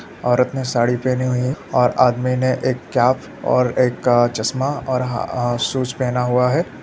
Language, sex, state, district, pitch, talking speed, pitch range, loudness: Hindi, male, Bihar, Araria, 125 Hz, 185 wpm, 125-130 Hz, -19 LUFS